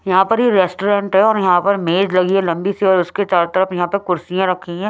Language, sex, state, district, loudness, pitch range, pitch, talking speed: Hindi, female, Haryana, Rohtak, -16 LUFS, 180-200 Hz, 190 Hz, 270 wpm